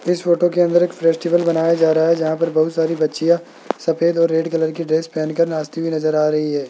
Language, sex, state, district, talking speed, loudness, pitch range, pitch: Hindi, male, Rajasthan, Jaipur, 250 wpm, -18 LUFS, 160-170 Hz, 165 Hz